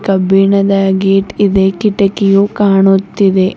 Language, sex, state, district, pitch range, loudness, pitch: Kannada, female, Karnataka, Bidar, 195-200 Hz, -11 LUFS, 195 Hz